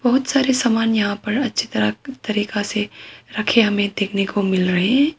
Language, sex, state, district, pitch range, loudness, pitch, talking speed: Hindi, female, Arunachal Pradesh, Papum Pare, 200-250 Hz, -19 LUFS, 210 Hz, 185 wpm